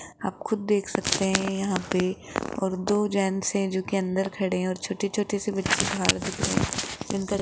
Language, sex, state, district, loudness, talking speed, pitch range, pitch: Hindi, female, Rajasthan, Jaipur, -26 LUFS, 210 wpm, 190-205 Hz, 195 Hz